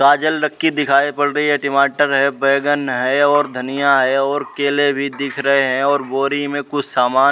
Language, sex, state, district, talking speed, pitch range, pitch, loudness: Hindi, male, Uttar Pradesh, Muzaffarnagar, 215 wpm, 140-145 Hz, 140 Hz, -16 LUFS